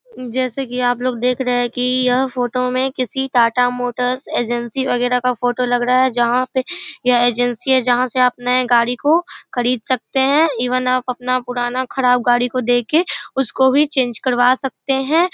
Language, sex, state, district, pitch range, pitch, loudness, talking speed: Hindi, female, Bihar, Darbhanga, 245-260 Hz, 250 Hz, -17 LUFS, 195 wpm